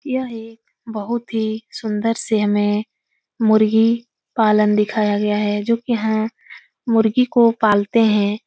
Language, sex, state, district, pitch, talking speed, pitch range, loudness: Hindi, female, Uttar Pradesh, Etah, 220 Hz, 130 wpm, 210-230 Hz, -18 LUFS